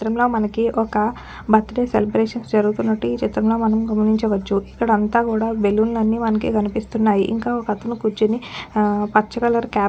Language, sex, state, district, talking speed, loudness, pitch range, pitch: Telugu, female, Telangana, Nalgonda, 160 wpm, -19 LUFS, 210-225 Hz, 220 Hz